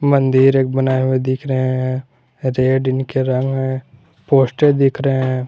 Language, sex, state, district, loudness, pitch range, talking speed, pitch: Hindi, male, Jharkhand, Garhwa, -16 LUFS, 130-135 Hz, 165 wpm, 130 Hz